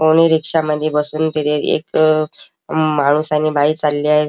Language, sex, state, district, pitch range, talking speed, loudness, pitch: Marathi, male, Maharashtra, Chandrapur, 150-155 Hz, 125 wpm, -16 LUFS, 155 Hz